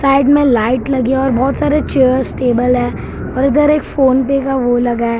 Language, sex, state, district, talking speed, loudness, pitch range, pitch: Hindi, male, Maharashtra, Mumbai Suburban, 210 wpm, -13 LUFS, 245-275 Hz, 265 Hz